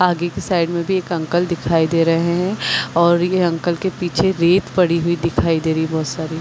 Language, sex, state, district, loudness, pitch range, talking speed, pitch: Hindi, female, Chhattisgarh, Bilaspur, -18 LUFS, 165-180 Hz, 235 wpm, 170 Hz